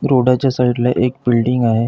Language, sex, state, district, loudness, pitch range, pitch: Marathi, male, Maharashtra, Pune, -15 LUFS, 120-125 Hz, 125 Hz